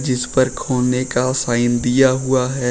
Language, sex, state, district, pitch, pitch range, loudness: Hindi, male, Uttar Pradesh, Shamli, 125 Hz, 125-130 Hz, -17 LUFS